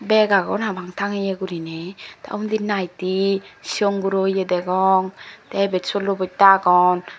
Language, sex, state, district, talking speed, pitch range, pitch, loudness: Chakma, female, Tripura, Dhalai, 140 wpm, 180-200 Hz, 190 Hz, -20 LUFS